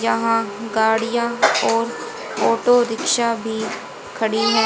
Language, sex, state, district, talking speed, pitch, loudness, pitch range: Hindi, female, Haryana, Rohtak, 105 wpm, 225 Hz, -19 LUFS, 220-235 Hz